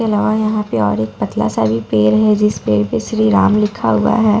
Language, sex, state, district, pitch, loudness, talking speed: Hindi, female, Bihar, Katihar, 210 Hz, -15 LUFS, 260 wpm